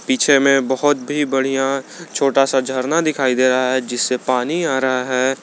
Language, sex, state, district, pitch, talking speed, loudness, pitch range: Hindi, male, Jharkhand, Garhwa, 135 Hz, 190 wpm, -17 LUFS, 130-140 Hz